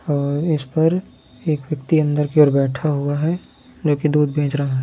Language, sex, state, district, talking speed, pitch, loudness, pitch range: Hindi, male, Bihar, Sitamarhi, 185 wpm, 150 Hz, -19 LUFS, 145-155 Hz